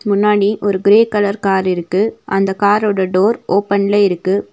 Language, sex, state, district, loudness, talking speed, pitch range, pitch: Tamil, female, Tamil Nadu, Nilgiris, -14 LUFS, 145 wpm, 195-210 Hz, 200 Hz